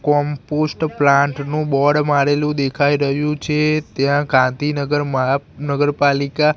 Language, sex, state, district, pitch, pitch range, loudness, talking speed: Gujarati, male, Gujarat, Gandhinagar, 145 Hz, 140-150 Hz, -17 LUFS, 100 wpm